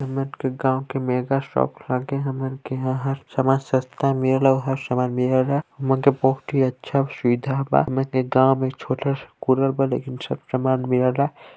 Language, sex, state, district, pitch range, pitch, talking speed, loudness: Chhattisgarhi, male, Chhattisgarh, Balrampur, 130-135 Hz, 130 Hz, 190 wpm, -22 LUFS